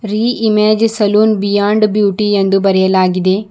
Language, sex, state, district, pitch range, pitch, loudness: Kannada, female, Karnataka, Bidar, 195-215 Hz, 210 Hz, -12 LUFS